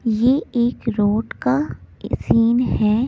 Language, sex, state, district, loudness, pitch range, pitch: Hindi, female, Delhi, New Delhi, -19 LUFS, 220-245 Hz, 230 Hz